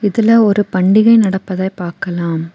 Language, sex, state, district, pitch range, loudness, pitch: Tamil, female, Tamil Nadu, Nilgiris, 175-215 Hz, -13 LUFS, 190 Hz